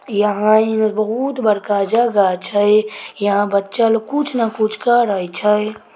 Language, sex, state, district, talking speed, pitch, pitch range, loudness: Maithili, female, Bihar, Samastipur, 140 wpm, 215 Hz, 205-225 Hz, -16 LUFS